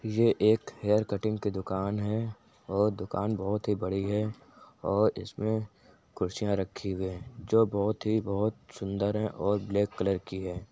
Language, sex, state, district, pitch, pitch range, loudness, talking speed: Hindi, male, Uttar Pradesh, Jyotiba Phule Nagar, 105 Hz, 95-110 Hz, -30 LUFS, 170 wpm